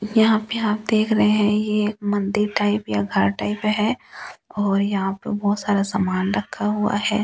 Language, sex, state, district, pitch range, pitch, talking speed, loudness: Hindi, female, Delhi, New Delhi, 200-215 Hz, 210 Hz, 180 wpm, -21 LUFS